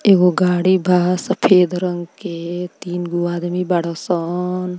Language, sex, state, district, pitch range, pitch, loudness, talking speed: Bhojpuri, female, Uttar Pradesh, Ghazipur, 175-180 Hz, 180 Hz, -18 LUFS, 125 wpm